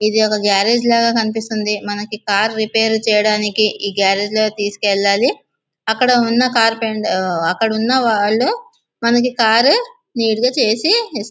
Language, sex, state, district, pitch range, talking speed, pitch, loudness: Telugu, male, Andhra Pradesh, Visakhapatnam, 210-235 Hz, 120 wpm, 220 Hz, -15 LUFS